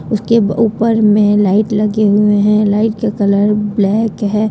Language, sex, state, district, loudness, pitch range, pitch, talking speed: Hindi, female, Jharkhand, Deoghar, -13 LUFS, 205-215 Hz, 210 Hz, 160 wpm